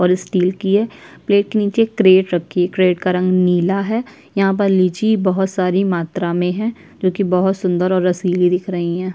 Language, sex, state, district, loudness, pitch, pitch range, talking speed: Hindi, female, Chhattisgarh, Sukma, -17 LUFS, 185 Hz, 180-200 Hz, 225 wpm